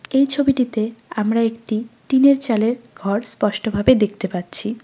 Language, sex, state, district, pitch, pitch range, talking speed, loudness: Bengali, female, West Bengal, Cooch Behar, 230 Hz, 215-255 Hz, 125 wpm, -19 LUFS